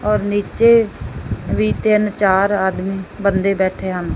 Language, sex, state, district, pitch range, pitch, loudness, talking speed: Punjabi, female, Punjab, Fazilka, 190-205 Hz, 195 Hz, -17 LUFS, 130 wpm